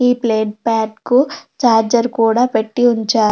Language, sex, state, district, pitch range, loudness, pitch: Telugu, female, Andhra Pradesh, Anantapur, 220-245 Hz, -15 LUFS, 230 Hz